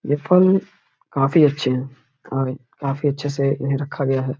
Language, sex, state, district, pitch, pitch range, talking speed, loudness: Hindi, male, Uttar Pradesh, Varanasi, 140 Hz, 135-145 Hz, 175 wpm, -20 LUFS